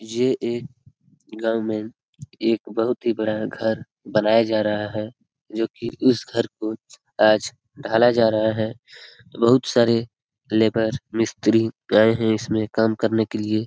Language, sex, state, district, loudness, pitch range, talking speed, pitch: Hindi, male, Bihar, Araria, -21 LUFS, 110-120 Hz, 145 wpm, 115 Hz